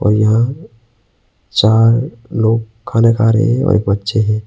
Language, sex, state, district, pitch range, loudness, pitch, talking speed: Hindi, male, Arunachal Pradesh, Papum Pare, 105-115 Hz, -14 LUFS, 110 Hz, 145 wpm